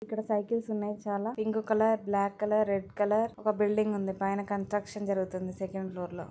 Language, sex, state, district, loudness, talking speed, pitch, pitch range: Telugu, female, Telangana, Nalgonda, -31 LUFS, 180 wpm, 205 Hz, 195-215 Hz